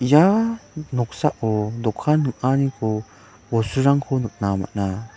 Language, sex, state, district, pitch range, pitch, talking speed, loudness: Garo, male, Meghalaya, West Garo Hills, 110-140 Hz, 120 Hz, 80 wpm, -21 LUFS